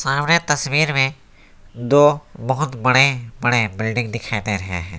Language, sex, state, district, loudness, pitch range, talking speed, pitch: Hindi, male, West Bengal, Alipurduar, -18 LUFS, 110-145 Hz, 145 wpm, 120 Hz